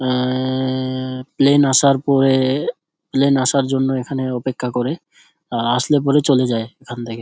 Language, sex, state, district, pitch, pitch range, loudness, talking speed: Bengali, male, West Bengal, Dakshin Dinajpur, 130 Hz, 125-140 Hz, -18 LUFS, 135 wpm